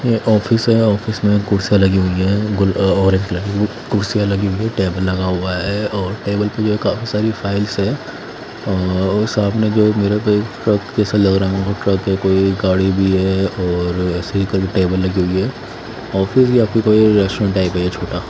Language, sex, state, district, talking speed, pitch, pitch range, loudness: Hindi, male, Bihar, West Champaran, 195 wpm, 100 Hz, 95-105 Hz, -16 LUFS